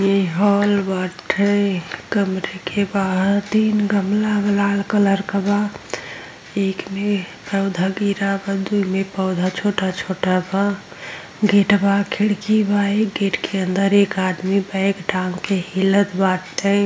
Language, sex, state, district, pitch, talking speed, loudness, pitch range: Bhojpuri, female, Uttar Pradesh, Gorakhpur, 195 Hz, 130 wpm, -19 LUFS, 190-205 Hz